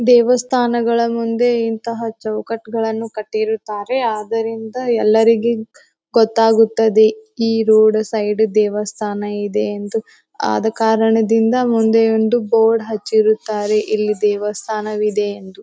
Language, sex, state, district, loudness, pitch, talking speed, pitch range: Kannada, female, Karnataka, Bijapur, -17 LUFS, 220 Hz, 100 wpm, 215-230 Hz